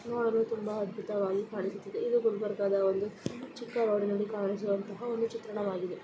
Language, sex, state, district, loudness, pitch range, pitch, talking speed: Kannada, female, Karnataka, Gulbarga, -32 LUFS, 200-230 Hz, 210 Hz, 110 wpm